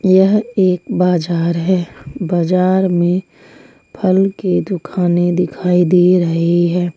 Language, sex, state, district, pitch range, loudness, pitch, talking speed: Hindi, female, Jharkhand, Ranchi, 175-185 Hz, -15 LUFS, 180 Hz, 110 wpm